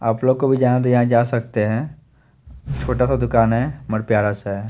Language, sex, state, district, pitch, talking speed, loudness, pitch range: Hindi, male, Chandigarh, Chandigarh, 120 Hz, 240 wpm, -19 LUFS, 110-130 Hz